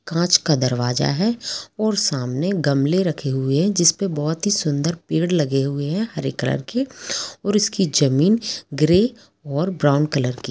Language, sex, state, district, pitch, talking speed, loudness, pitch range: Hindi, female, Jharkhand, Sahebganj, 165 Hz, 165 wpm, -20 LUFS, 140-195 Hz